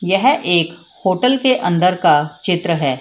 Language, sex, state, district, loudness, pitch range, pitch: Hindi, female, Bihar, Samastipur, -16 LUFS, 165-195 Hz, 175 Hz